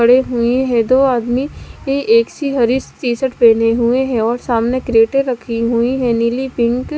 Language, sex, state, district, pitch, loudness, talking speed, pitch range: Hindi, female, Maharashtra, Washim, 245 Hz, -15 LUFS, 195 wpm, 235-260 Hz